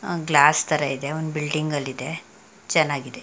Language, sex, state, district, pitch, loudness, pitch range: Kannada, female, Karnataka, Mysore, 150 Hz, -22 LUFS, 145-155 Hz